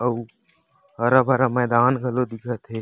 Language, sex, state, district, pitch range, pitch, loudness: Chhattisgarhi, male, Chhattisgarh, Raigarh, 120-130 Hz, 125 Hz, -21 LUFS